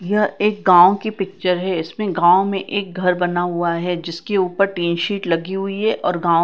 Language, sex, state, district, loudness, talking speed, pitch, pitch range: Hindi, female, Punjab, Kapurthala, -18 LUFS, 215 wpm, 185 Hz, 175-200 Hz